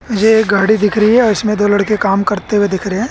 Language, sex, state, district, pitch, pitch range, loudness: Hindi, male, Haryana, Jhajjar, 210 Hz, 200-215 Hz, -13 LUFS